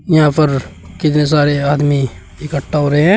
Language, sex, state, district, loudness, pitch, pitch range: Hindi, male, Uttar Pradesh, Shamli, -14 LUFS, 145 Hz, 140-155 Hz